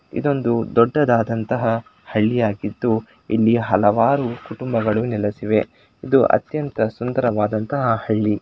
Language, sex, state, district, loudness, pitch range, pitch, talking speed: Kannada, male, Karnataka, Shimoga, -20 LUFS, 110-120 Hz, 115 Hz, 85 wpm